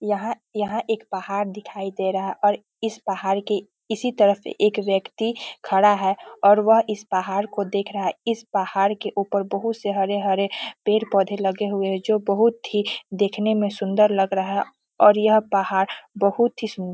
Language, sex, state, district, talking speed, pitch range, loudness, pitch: Hindi, female, Bihar, Muzaffarpur, 185 wpm, 195-215 Hz, -22 LUFS, 205 Hz